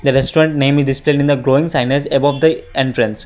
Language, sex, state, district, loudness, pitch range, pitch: English, male, Assam, Kamrup Metropolitan, -14 LUFS, 135-145 Hz, 140 Hz